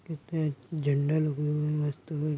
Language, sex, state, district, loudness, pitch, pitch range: Hindi, male, Uttar Pradesh, Budaun, -30 LUFS, 150 Hz, 145-155 Hz